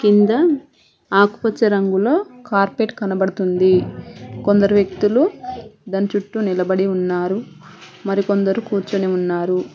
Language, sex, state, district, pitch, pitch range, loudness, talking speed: Telugu, female, Telangana, Mahabubabad, 200 Hz, 190-220 Hz, -18 LUFS, 85 wpm